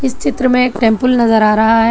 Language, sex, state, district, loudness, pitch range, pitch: Hindi, female, Telangana, Hyderabad, -12 LUFS, 225-255 Hz, 235 Hz